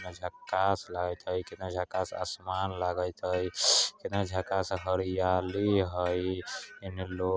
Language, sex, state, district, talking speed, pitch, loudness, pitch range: Bajjika, male, Bihar, Vaishali, 170 wpm, 95 Hz, -31 LUFS, 90-95 Hz